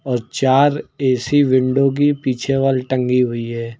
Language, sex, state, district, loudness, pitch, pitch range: Hindi, male, Uttar Pradesh, Lucknow, -17 LUFS, 130 Hz, 125-135 Hz